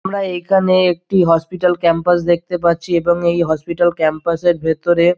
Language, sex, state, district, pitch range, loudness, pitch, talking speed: Bengali, male, West Bengal, Dakshin Dinajpur, 170-180 Hz, -16 LUFS, 175 Hz, 160 wpm